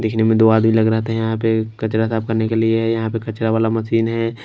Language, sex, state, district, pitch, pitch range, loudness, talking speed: Hindi, male, Punjab, Kapurthala, 110 Hz, 110-115 Hz, -18 LUFS, 270 wpm